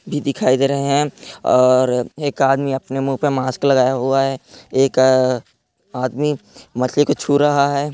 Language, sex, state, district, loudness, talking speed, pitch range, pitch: Chhattisgarhi, male, Chhattisgarh, Korba, -17 LUFS, 175 wpm, 130-140 Hz, 135 Hz